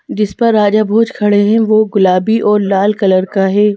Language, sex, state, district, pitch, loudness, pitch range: Hindi, female, Madhya Pradesh, Bhopal, 210 Hz, -12 LUFS, 195-215 Hz